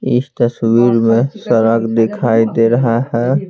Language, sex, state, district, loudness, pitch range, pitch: Hindi, male, Bihar, Patna, -14 LUFS, 115-120 Hz, 115 Hz